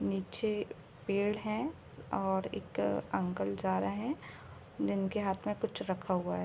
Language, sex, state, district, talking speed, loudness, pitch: Hindi, female, Uttar Pradesh, Ghazipur, 150 wpm, -35 LUFS, 190 Hz